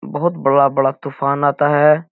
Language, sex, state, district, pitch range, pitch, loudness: Hindi, male, Bihar, Jahanabad, 140-150 Hz, 140 Hz, -16 LUFS